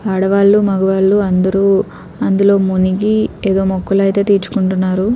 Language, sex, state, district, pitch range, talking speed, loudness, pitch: Telugu, female, Andhra Pradesh, Krishna, 190-200 Hz, 95 wpm, -13 LUFS, 195 Hz